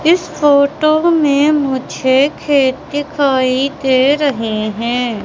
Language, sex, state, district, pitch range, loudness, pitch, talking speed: Hindi, female, Madhya Pradesh, Katni, 260-295 Hz, -14 LUFS, 280 Hz, 105 wpm